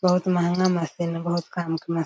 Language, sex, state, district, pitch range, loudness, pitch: Maithili, female, Bihar, Darbhanga, 165-180 Hz, -24 LUFS, 175 Hz